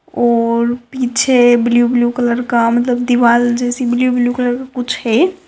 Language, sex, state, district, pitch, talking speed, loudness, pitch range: Hindi, female, Maharashtra, Dhule, 245 Hz, 155 wpm, -14 LUFS, 240-250 Hz